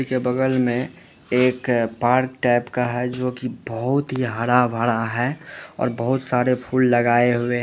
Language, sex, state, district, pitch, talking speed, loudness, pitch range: Hindi, male, Uttar Pradesh, Lalitpur, 125 Hz, 155 wpm, -21 LUFS, 120-130 Hz